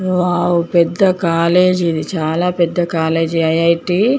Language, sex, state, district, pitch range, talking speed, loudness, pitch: Telugu, female, Andhra Pradesh, Chittoor, 165-180 Hz, 155 wpm, -15 LUFS, 170 Hz